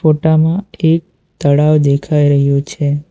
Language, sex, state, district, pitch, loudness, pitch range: Gujarati, male, Gujarat, Valsad, 150 Hz, -13 LUFS, 145-160 Hz